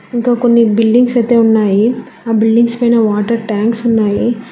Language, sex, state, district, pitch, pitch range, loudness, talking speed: Telugu, female, Telangana, Hyderabad, 230 Hz, 220-235 Hz, -12 LUFS, 145 wpm